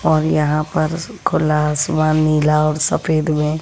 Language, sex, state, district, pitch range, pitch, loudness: Hindi, female, Bihar, West Champaran, 150-155 Hz, 155 Hz, -17 LUFS